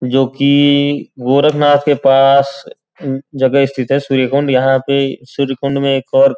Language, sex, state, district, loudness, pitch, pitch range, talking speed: Hindi, male, Uttar Pradesh, Gorakhpur, -13 LUFS, 140 Hz, 135-140 Hz, 150 wpm